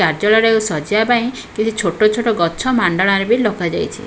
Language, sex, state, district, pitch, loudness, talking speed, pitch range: Odia, female, Odisha, Khordha, 215 Hz, -16 LUFS, 160 wpm, 185-230 Hz